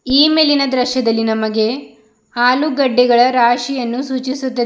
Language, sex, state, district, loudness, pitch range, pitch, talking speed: Kannada, female, Karnataka, Bidar, -14 LUFS, 235-270 Hz, 250 Hz, 90 wpm